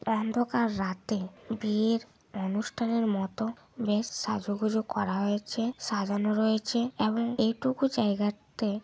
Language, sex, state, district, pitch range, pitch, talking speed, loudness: Bengali, female, West Bengal, Malda, 205-230 Hz, 220 Hz, 100 wpm, -30 LUFS